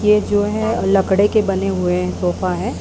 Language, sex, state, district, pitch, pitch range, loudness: Hindi, female, Uttar Pradesh, Jalaun, 195 Hz, 180-210 Hz, -17 LUFS